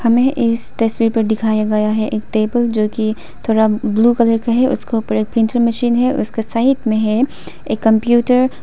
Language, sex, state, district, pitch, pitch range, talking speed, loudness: Hindi, female, Arunachal Pradesh, Papum Pare, 225 Hz, 220-240 Hz, 200 wpm, -16 LUFS